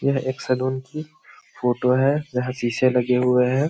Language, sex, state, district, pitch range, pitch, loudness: Hindi, male, Chhattisgarh, Balrampur, 125-140 Hz, 130 Hz, -21 LUFS